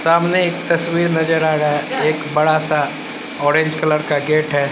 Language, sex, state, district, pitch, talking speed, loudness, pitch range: Hindi, male, Bihar, Katihar, 155 Hz, 180 wpm, -17 LUFS, 150-165 Hz